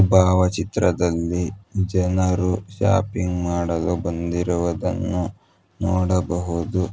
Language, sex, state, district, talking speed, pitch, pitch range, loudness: Kannada, male, Karnataka, Bangalore, 50 wpm, 90 Hz, 85-95 Hz, -22 LUFS